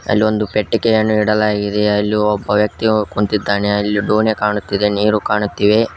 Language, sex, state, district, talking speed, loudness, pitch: Kannada, male, Karnataka, Koppal, 120 wpm, -16 LUFS, 105 Hz